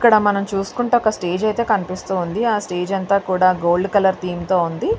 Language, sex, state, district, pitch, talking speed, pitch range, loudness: Telugu, female, Telangana, Karimnagar, 195 Hz, 190 wpm, 180-215 Hz, -19 LUFS